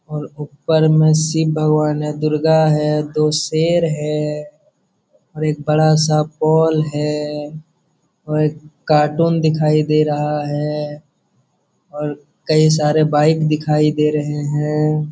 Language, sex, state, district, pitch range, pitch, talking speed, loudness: Hindi, male, Jharkhand, Jamtara, 150-155 Hz, 150 Hz, 125 wpm, -16 LUFS